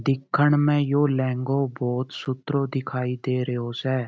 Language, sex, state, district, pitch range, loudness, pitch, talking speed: Marwari, male, Rajasthan, Churu, 125-140 Hz, -24 LUFS, 130 Hz, 145 wpm